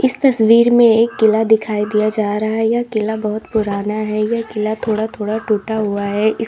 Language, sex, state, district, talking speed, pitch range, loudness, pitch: Hindi, female, Uttar Pradesh, Lalitpur, 215 wpm, 215-225 Hz, -16 LUFS, 220 Hz